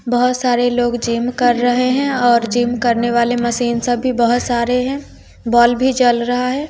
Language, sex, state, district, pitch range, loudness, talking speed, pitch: Hindi, female, Bihar, West Champaran, 240-250 Hz, -16 LUFS, 190 wpm, 245 Hz